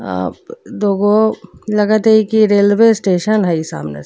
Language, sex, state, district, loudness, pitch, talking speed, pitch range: Bhojpuri, female, Uttar Pradesh, Deoria, -14 LUFS, 205 Hz, 135 wpm, 165-215 Hz